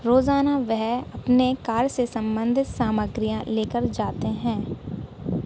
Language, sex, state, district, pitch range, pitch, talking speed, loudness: Hindi, female, Uttar Pradesh, Gorakhpur, 225-255 Hz, 240 Hz, 110 wpm, -24 LUFS